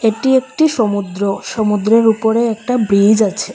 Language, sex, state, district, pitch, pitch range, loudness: Bengali, female, Assam, Hailakandi, 220 Hz, 205-235 Hz, -14 LUFS